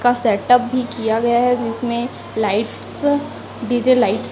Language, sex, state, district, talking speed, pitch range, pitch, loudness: Hindi, female, Chhattisgarh, Raipur, 150 wpm, 225-250 Hz, 245 Hz, -18 LUFS